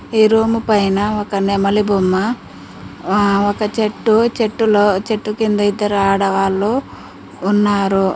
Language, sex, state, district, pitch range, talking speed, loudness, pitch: Telugu, female, Telangana, Mahabubabad, 195-215 Hz, 110 wpm, -16 LUFS, 205 Hz